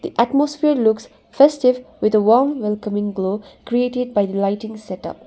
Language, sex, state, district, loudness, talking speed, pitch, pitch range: English, female, Sikkim, Gangtok, -18 LUFS, 150 wpm, 220 Hz, 205-255 Hz